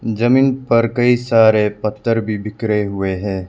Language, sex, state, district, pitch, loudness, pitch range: Hindi, male, Arunachal Pradesh, Lower Dibang Valley, 110 Hz, -16 LUFS, 105-120 Hz